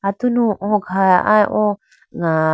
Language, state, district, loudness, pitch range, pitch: Idu Mishmi, Arunachal Pradesh, Lower Dibang Valley, -17 LUFS, 185-215 Hz, 200 Hz